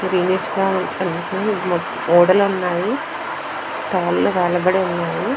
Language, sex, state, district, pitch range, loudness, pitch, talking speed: Telugu, female, Andhra Pradesh, Visakhapatnam, 175-195 Hz, -19 LUFS, 185 Hz, 90 wpm